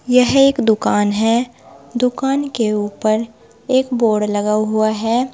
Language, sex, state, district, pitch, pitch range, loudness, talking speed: Hindi, female, Uttar Pradesh, Saharanpur, 230 Hz, 215-250 Hz, -16 LUFS, 135 wpm